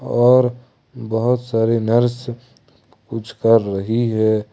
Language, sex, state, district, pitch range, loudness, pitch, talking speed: Hindi, male, Jharkhand, Ranchi, 110-125 Hz, -17 LUFS, 115 Hz, 105 wpm